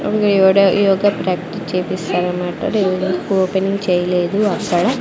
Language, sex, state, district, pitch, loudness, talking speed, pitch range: Telugu, female, Andhra Pradesh, Sri Satya Sai, 190 Hz, -16 LUFS, 95 wpm, 180-200 Hz